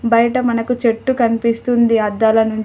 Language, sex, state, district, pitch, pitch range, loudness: Telugu, female, Telangana, Adilabad, 230 Hz, 225-240 Hz, -15 LUFS